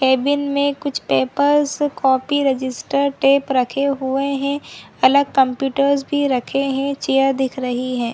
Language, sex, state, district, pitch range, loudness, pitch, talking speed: Hindi, female, Chhattisgarh, Balrampur, 260-280 Hz, -18 LUFS, 275 Hz, 150 wpm